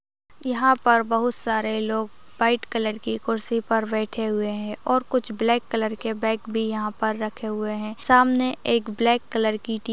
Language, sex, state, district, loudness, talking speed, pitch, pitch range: Hindi, female, Uttar Pradesh, Ghazipur, -23 LUFS, 195 wpm, 225 Hz, 220-235 Hz